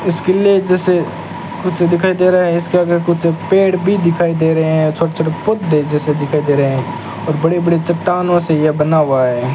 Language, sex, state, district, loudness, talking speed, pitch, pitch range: Hindi, male, Rajasthan, Bikaner, -14 LUFS, 200 wpm, 170 Hz, 155-180 Hz